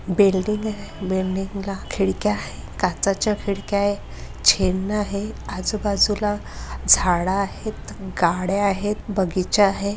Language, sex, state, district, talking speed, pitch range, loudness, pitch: Marathi, female, Maharashtra, Chandrapur, 110 wpm, 185-205 Hz, -22 LUFS, 200 Hz